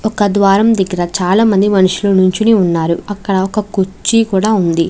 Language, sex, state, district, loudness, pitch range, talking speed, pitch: Telugu, female, Andhra Pradesh, Chittoor, -13 LUFS, 185-215 Hz, 135 wpm, 195 Hz